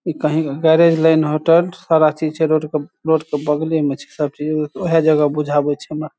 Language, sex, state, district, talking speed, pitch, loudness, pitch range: Maithili, male, Bihar, Saharsa, 215 wpm, 155 Hz, -17 LUFS, 150-160 Hz